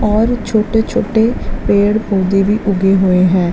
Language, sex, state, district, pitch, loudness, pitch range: Hindi, female, Jharkhand, Jamtara, 205 Hz, -14 LUFS, 195-220 Hz